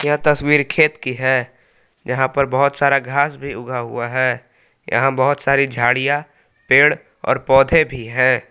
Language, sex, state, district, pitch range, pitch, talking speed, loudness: Hindi, male, Jharkhand, Palamu, 125-145 Hz, 135 Hz, 160 wpm, -17 LUFS